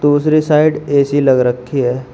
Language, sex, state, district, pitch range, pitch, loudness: Hindi, male, Uttar Pradesh, Shamli, 130-150 Hz, 145 Hz, -13 LUFS